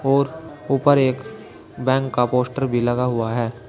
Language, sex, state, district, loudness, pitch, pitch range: Hindi, male, Uttar Pradesh, Saharanpur, -20 LUFS, 130 Hz, 120-135 Hz